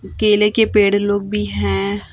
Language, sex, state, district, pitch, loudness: Hindi, female, Chhattisgarh, Raipur, 205 Hz, -16 LUFS